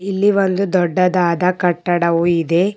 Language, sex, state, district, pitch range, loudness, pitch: Kannada, female, Karnataka, Bidar, 170-190 Hz, -16 LUFS, 180 Hz